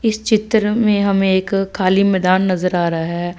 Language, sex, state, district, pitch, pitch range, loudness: Hindi, female, Punjab, Fazilka, 195 Hz, 185-210 Hz, -16 LUFS